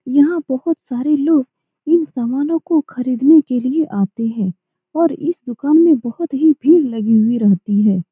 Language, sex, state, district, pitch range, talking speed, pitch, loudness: Hindi, female, Bihar, Saran, 230-315 Hz, 170 wpm, 265 Hz, -16 LUFS